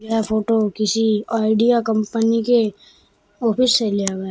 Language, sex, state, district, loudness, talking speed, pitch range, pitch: Hindi, female, Uttar Pradesh, Shamli, -18 LUFS, 155 wpm, 215-230 Hz, 220 Hz